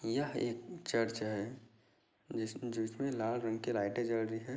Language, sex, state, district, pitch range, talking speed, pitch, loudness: Hindi, male, Chhattisgarh, Korba, 110-120 Hz, 155 wpm, 115 Hz, -38 LUFS